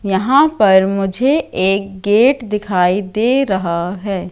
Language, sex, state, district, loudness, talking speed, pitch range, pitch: Hindi, female, Madhya Pradesh, Katni, -15 LUFS, 125 wpm, 190-230 Hz, 200 Hz